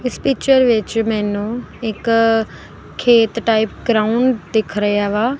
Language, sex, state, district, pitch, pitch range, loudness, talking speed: Punjabi, female, Punjab, Kapurthala, 225 Hz, 215-240 Hz, -16 LUFS, 120 wpm